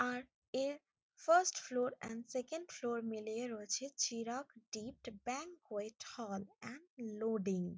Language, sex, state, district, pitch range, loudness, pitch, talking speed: Bengali, female, West Bengal, Jalpaiguri, 220-265 Hz, -41 LUFS, 240 Hz, 125 wpm